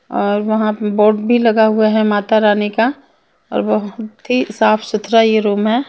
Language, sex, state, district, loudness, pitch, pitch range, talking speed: Hindi, female, Punjab, Kapurthala, -15 LUFS, 215 Hz, 210-225 Hz, 195 wpm